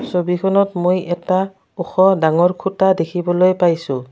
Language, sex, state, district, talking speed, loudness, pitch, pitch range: Assamese, female, Assam, Kamrup Metropolitan, 115 wpm, -17 LUFS, 180 Hz, 175-190 Hz